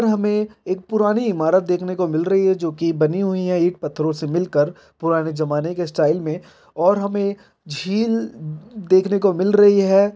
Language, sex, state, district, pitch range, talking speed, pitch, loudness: Hindi, male, Bihar, Jahanabad, 160-200 Hz, 185 wpm, 185 Hz, -19 LUFS